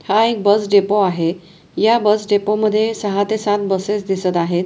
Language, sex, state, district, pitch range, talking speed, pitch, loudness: Marathi, female, Maharashtra, Pune, 190-215 Hz, 195 wpm, 205 Hz, -17 LUFS